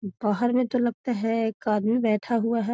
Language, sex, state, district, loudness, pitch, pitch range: Magahi, female, Bihar, Gaya, -25 LUFS, 225 Hz, 215-240 Hz